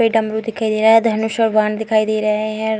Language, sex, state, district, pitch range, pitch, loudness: Hindi, female, Bihar, Muzaffarpur, 215-225 Hz, 220 Hz, -16 LUFS